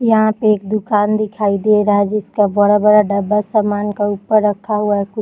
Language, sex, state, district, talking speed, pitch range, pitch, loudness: Hindi, female, Bihar, Jahanabad, 195 wpm, 205-215 Hz, 210 Hz, -15 LUFS